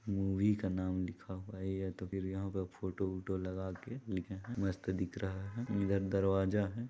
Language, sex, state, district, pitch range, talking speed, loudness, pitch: Hindi, male, Chhattisgarh, Balrampur, 95-100 Hz, 215 wpm, -38 LUFS, 95 Hz